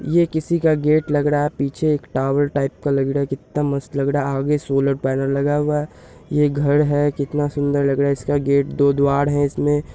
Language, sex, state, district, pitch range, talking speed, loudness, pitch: Hindi, male, Bihar, Purnia, 140-145 Hz, 240 wpm, -19 LUFS, 145 Hz